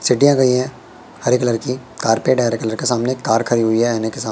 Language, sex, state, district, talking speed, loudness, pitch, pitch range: Hindi, male, Madhya Pradesh, Katni, 235 wpm, -17 LUFS, 120 Hz, 115-125 Hz